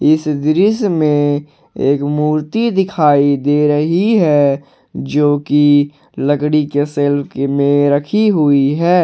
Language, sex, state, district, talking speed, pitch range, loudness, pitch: Hindi, male, Jharkhand, Ranchi, 125 wpm, 145-155 Hz, -14 LUFS, 145 Hz